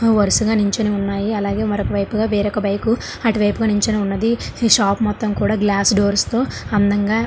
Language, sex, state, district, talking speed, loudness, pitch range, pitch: Telugu, female, Andhra Pradesh, Srikakulam, 180 wpm, -18 LUFS, 205-220 Hz, 210 Hz